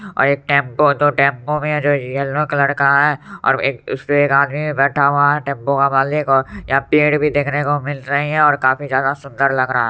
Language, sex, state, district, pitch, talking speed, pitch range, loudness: Hindi, male, Bihar, Supaul, 140 Hz, 220 wpm, 135-145 Hz, -16 LUFS